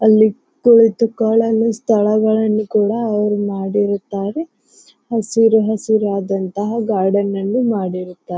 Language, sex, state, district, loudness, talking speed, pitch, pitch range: Kannada, female, Karnataka, Bijapur, -16 LUFS, 100 wpm, 215 Hz, 200-225 Hz